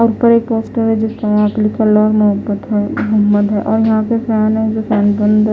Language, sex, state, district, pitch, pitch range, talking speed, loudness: Hindi, female, Odisha, Khordha, 215 Hz, 210-225 Hz, 250 wpm, -14 LUFS